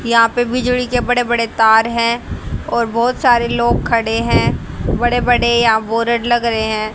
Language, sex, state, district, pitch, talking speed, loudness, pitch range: Hindi, female, Haryana, Jhajjar, 235 Hz, 180 wpm, -15 LUFS, 230-245 Hz